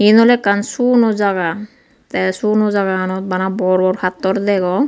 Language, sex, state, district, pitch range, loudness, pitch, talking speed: Chakma, female, Tripura, Unakoti, 185-220 Hz, -16 LUFS, 200 Hz, 150 wpm